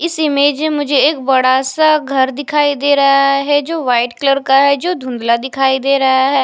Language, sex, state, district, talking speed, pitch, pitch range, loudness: Hindi, female, Punjab, Fazilka, 215 wpm, 275 Hz, 265-290 Hz, -13 LUFS